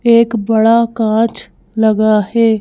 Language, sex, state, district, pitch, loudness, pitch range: Hindi, female, Madhya Pradesh, Bhopal, 225 Hz, -13 LUFS, 220-230 Hz